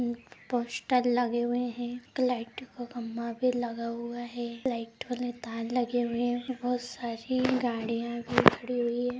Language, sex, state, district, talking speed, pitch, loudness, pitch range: Hindi, female, Bihar, Begusarai, 165 wpm, 240 Hz, -30 LUFS, 235-245 Hz